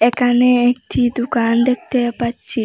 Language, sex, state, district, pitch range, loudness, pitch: Bengali, female, Assam, Hailakandi, 235-250 Hz, -16 LUFS, 245 Hz